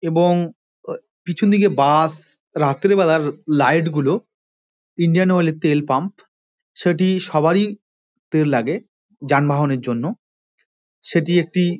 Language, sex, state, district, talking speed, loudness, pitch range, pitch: Bengali, male, West Bengal, Dakshin Dinajpur, 110 wpm, -18 LUFS, 150-185 Hz, 165 Hz